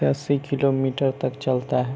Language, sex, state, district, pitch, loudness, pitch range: Hindi, male, Bihar, Begusarai, 130 Hz, -23 LUFS, 125-140 Hz